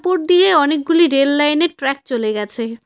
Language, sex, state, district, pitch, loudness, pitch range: Bengali, female, West Bengal, Cooch Behar, 290 Hz, -15 LUFS, 255-335 Hz